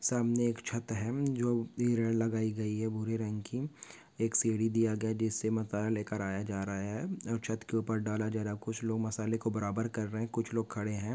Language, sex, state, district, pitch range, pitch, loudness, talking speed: Hindi, male, Maharashtra, Nagpur, 110-115 Hz, 110 Hz, -34 LUFS, 220 wpm